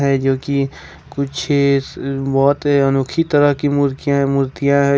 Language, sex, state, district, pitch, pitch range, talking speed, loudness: Hindi, male, Jharkhand, Ranchi, 140 Hz, 135-140 Hz, 120 wpm, -17 LUFS